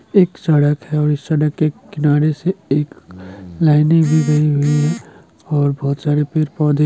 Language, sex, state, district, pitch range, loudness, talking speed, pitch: Hindi, male, Bihar, Sitamarhi, 145-155 Hz, -16 LUFS, 165 wpm, 150 Hz